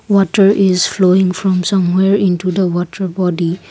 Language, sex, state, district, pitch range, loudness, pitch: English, female, Assam, Kamrup Metropolitan, 180-195 Hz, -14 LUFS, 185 Hz